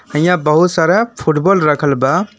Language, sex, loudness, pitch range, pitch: Bhojpuri, male, -13 LUFS, 150-180 Hz, 165 Hz